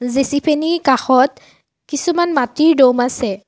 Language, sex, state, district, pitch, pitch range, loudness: Assamese, female, Assam, Sonitpur, 275 Hz, 250-305 Hz, -15 LUFS